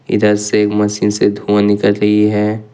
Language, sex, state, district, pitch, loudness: Hindi, male, Jharkhand, Ranchi, 105 Hz, -13 LUFS